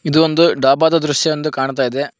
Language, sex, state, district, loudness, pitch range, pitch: Kannada, male, Karnataka, Koppal, -15 LUFS, 135-160 Hz, 150 Hz